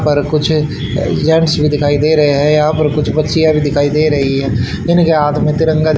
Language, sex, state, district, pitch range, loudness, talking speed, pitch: Hindi, male, Haryana, Charkhi Dadri, 145-155 Hz, -13 LUFS, 220 wpm, 150 Hz